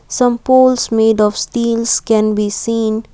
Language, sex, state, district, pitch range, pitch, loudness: English, female, Assam, Kamrup Metropolitan, 220-240 Hz, 225 Hz, -14 LUFS